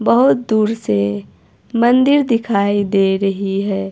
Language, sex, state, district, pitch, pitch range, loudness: Hindi, female, Himachal Pradesh, Shimla, 200 Hz, 195-225 Hz, -16 LUFS